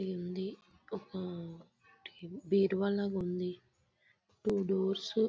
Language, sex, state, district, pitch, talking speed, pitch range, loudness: Telugu, female, Andhra Pradesh, Visakhapatnam, 190 Hz, 90 wpm, 180-200 Hz, -35 LUFS